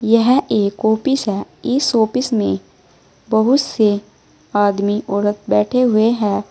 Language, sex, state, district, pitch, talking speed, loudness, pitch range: Hindi, female, Uttar Pradesh, Saharanpur, 220 Hz, 130 wpm, -17 LUFS, 205-245 Hz